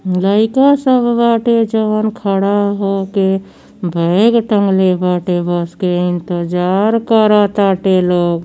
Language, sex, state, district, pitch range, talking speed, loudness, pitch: Bhojpuri, female, Uttar Pradesh, Gorakhpur, 180-220 Hz, 100 wpm, -13 LUFS, 195 Hz